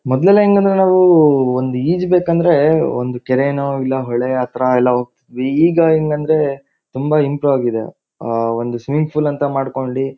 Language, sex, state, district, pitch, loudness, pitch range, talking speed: Kannada, male, Karnataka, Shimoga, 140 Hz, -15 LUFS, 130-155 Hz, 155 wpm